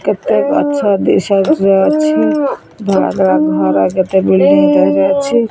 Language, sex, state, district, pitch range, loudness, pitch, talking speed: Odia, female, Odisha, Khordha, 190-290 Hz, -12 LUFS, 200 Hz, 140 wpm